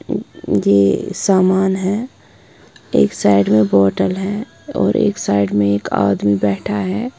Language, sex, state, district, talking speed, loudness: Hindi, female, Punjab, Kapurthala, 140 wpm, -16 LUFS